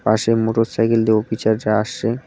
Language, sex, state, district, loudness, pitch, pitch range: Bengali, male, West Bengal, Cooch Behar, -18 LUFS, 110 Hz, 110-115 Hz